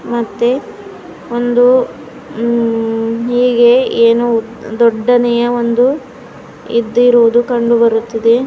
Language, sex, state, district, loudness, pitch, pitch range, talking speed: Kannada, female, Karnataka, Bidar, -12 LUFS, 235 Hz, 230-245 Hz, 55 wpm